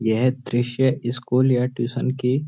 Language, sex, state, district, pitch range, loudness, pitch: Hindi, male, Uttarakhand, Uttarkashi, 120-130 Hz, -22 LUFS, 125 Hz